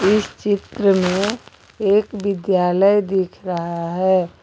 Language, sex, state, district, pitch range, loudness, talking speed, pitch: Hindi, female, Jharkhand, Garhwa, 180-205 Hz, -19 LUFS, 110 wpm, 195 Hz